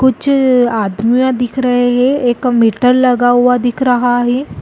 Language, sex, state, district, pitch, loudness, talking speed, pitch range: Hindi, female, Chhattisgarh, Rajnandgaon, 245 Hz, -12 LUFS, 155 wpm, 245-255 Hz